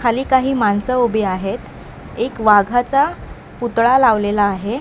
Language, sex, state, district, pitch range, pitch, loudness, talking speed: Marathi, male, Maharashtra, Mumbai Suburban, 205-255 Hz, 235 Hz, -16 LUFS, 125 wpm